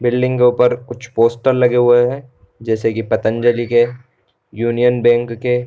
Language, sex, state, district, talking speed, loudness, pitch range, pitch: Hindi, male, Bihar, Darbhanga, 160 wpm, -15 LUFS, 120-125 Hz, 120 Hz